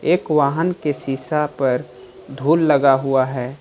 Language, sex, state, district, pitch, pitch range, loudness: Hindi, male, Jharkhand, Ranchi, 140 Hz, 130-155 Hz, -18 LUFS